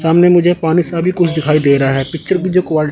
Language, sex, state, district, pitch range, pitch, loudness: Hindi, male, Chandigarh, Chandigarh, 155-175 Hz, 165 Hz, -13 LUFS